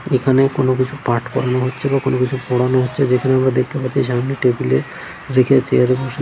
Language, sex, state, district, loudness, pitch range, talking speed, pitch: Bengali, male, West Bengal, Jhargram, -17 LUFS, 125-135 Hz, 220 wpm, 130 Hz